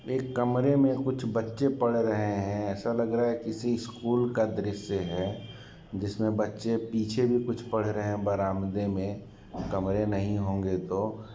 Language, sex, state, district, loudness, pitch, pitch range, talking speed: Hindi, male, Bihar, Sitamarhi, -29 LUFS, 110 Hz, 100-120 Hz, 170 wpm